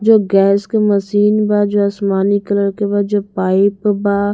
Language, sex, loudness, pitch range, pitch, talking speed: Bhojpuri, female, -14 LUFS, 200-205 Hz, 205 Hz, 180 wpm